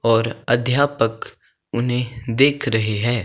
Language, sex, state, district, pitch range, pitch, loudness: Hindi, male, Himachal Pradesh, Shimla, 115-125 Hz, 120 Hz, -20 LUFS